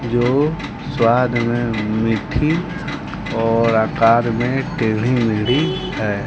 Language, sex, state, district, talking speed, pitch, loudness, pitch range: Hindi, male, Bihar, West Champaran, 95 wpm, 120 Hz, -18 LUFS, 115-135 Hz